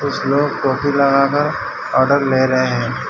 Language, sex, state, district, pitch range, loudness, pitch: Hindi, male, Gujarat, Valsad, 130-140 Hz, -16 LUFS, 140 Hz